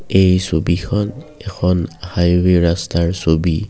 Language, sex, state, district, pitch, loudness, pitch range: Assamese, male, Assam, Kamrup Metropolitan, 90 Hz, -16 LUFS, 85-95 Hz